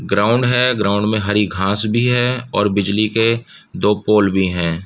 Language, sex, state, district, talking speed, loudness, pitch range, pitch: Hindi, male, Uttar Pradesh, Budaun, 185 wpm, -16 LUFS, 100-115 Hz, 105 Hz